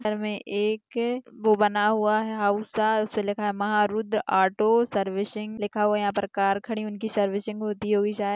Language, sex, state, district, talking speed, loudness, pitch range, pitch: Hindi, female, Maharashtra, Aurangabad, 180 wpm, -25 LUFS, 205-215 Hz, 210 Hz